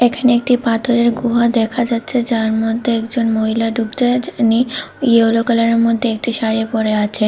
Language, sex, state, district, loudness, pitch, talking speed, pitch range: Bengali, female, Tripura, West Tripura, -16 LUFS, 230 Hz, 155 wpm, 225-240 Hz